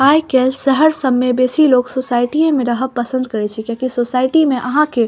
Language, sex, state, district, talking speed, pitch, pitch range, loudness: Maithili, female, Bihar, Saharsa, 225 wpm, 255 Hz, 245-280 Hz, -15 LUFS